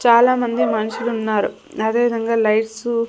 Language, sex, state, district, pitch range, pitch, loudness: Telugu, female, Andhra Pradesh, Sri Satya Sai, 220-235 Hz, 230 Hz, -19 LUFS